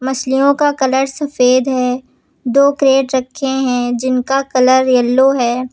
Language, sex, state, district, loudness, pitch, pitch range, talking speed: Hindi, female, Uttar Pradesh, Lucknow, -14 LUFS, 260 Hz, 255-270 Hz, 135 wpm